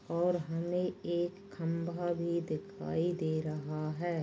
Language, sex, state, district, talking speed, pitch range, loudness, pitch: Hindi, female, Goa, North and South Goa, 125 wpm, 160-175 Hz, -35 LUFS, 170 Hz